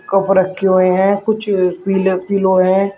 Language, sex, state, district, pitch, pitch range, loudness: Hindi, male, Uttar Pradesh, Shamli, 190 Hz, 185-195 Hz, -14 LUFS